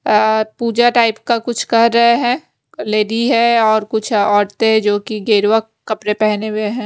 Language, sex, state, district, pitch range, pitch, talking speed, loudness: Hindi, female, Haryana, Rohtak, 215-235 Hz, 220 Hz, 175 wpm, -15 LUFS